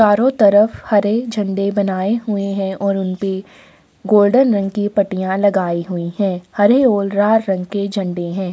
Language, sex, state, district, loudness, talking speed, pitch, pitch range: Hindi, female, Maharashtra, Aurangabad, -16 LUFS, 170 wpm, 200 Hz, 190-210 Hz